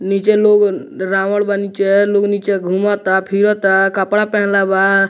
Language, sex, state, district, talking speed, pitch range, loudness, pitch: Bhojpuri, male, Bihar, Muzaffarpur, 140 wpm, 195-205 Hz, -14 LUFS, 200 Hz